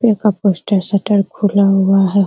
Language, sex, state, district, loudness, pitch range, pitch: Hindi, female, Bihar, Araria, -14 LUFS, 195-205 Hz, 200 Hz